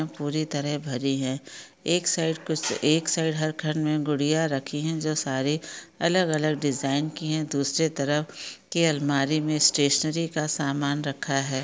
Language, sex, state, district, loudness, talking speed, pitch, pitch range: Hindi, female, Chhattisgarh, Bastar, -25 LUFS, 165 wpm, 150 Hz, 140-160 Hz